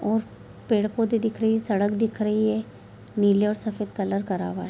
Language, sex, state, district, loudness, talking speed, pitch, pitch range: Hindi, female, Bihar, Bhagalpur, -24 LUFS, 205 wpm, 215 Hz, 205-220 Hz